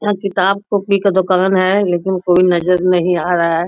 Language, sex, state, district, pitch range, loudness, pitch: Hindi, female, Bihar, Bhagalpur, 180-195 Hz, -14 LUFS, 185 Hz